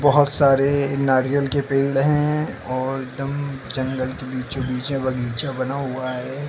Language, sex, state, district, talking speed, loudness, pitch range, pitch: Hindi, male, Uttar Pradesh, Varanasi, 150 wpm, -21 LUFS, 130-140 Hz, 135 Hz